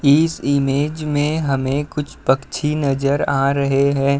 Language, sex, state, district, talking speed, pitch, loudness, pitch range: Hindi, male, Uttar Pradesh, Budaun, 140 wpm, 140 Hz, -18 LUFS, 140-150 Hz